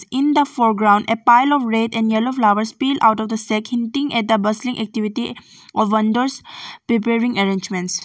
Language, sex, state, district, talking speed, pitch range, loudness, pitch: English, female, Arunachal Pradesh, Longding, 180 wpm, 215-250 Hz, -18 LUFS, 230 Hz